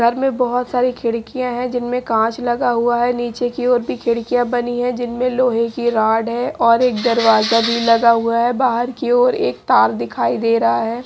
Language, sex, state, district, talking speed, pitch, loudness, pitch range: Hindi, female, Haryana, Jhajjar, 220 wpm, 240 Hz, -17 LUFS, 230-245 Hz